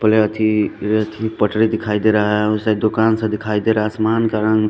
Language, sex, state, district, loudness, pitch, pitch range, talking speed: Hindi, male, Punjab, Fazilka, -17 LUFS, 110 Hz, 105-110 Hz, 190 wpm